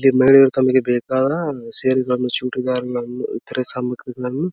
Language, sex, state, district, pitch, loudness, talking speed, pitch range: Kannada, male, Karnataka, Dharwad, 130 Hz, -18 LUFS, 120 wpm, 125-130 Hz